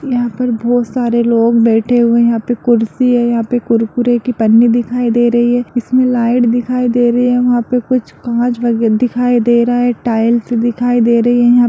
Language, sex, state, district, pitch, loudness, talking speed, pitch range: Hindi, female, Bihar, Lakhisarai, 240 Hz, -12 LUFS, 225 wpm, 235-245 Hz